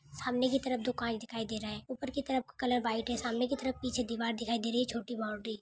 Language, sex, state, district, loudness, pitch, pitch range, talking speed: Hindi, female, Bihar, Gopalganj, -35 LUFS, 240 Hz, 225-255 Hz, 265 wpm